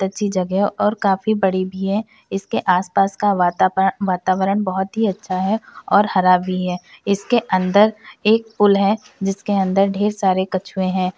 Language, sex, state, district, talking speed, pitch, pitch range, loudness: Hindi, female, Uttar Pradesh, Varanasi, 165 wpm, 195 Hz, 185-210 Hz, -19 LUFS